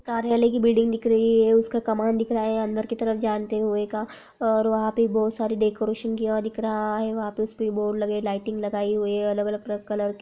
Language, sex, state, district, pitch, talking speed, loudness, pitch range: Hindi, female, Uttar Pradesh, Jyotiba Phule Nagar, 220 Hz, 245 wpm, -24 LUFS, 210-225 Hz